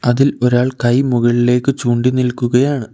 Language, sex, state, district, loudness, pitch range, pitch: Malayalam, male, Kerala, Kollam, -15 LUFS, 120-130 Hz, 125 Hz